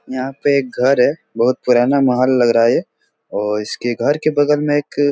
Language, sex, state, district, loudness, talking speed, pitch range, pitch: Hindi, male, Bihar, Jahanabad, -16 LUFS, 225 wpm, 120-145 Hz, 130 Hz